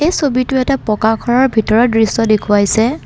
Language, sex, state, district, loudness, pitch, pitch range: Assamese, female, Assam, Kamrup Metropolitan, -13 LUFS, 225 Hz, 220-260 Hz